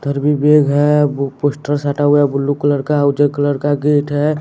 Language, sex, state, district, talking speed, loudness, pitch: Hindi, male, Bihar, West Champaran, 230 wpm, -15 LUFS, 145 Hz